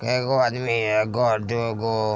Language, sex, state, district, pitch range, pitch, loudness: Maithili, male, Bihar, Vaishali, 110-125 Hz, 115 Hz, -22 LUFS